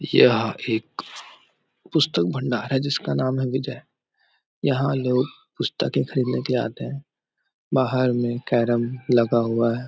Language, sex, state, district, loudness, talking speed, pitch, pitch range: Hindi, male, Chhattisgarh, Raigarh, -23 LUFS, 135 wpm, 125 Hz, 120-135 Hz